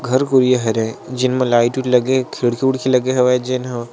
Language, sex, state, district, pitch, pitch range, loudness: Chhattisgarhi, male, Chhattisgarh, Sarguja, 125 Hz, 120-130 Hz, -17 LUFS